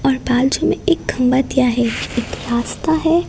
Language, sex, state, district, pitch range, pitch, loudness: Hindi, female, Gujarat, Gandhinagar, 240-320 Hz, 260 Hz, -17 LUFS